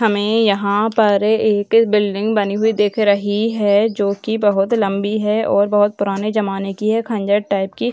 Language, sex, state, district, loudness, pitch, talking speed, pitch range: Hindi, female, Bihar, Gaya, -17 LUFS, 210 Hz, 175 wpm, 200-220 Hz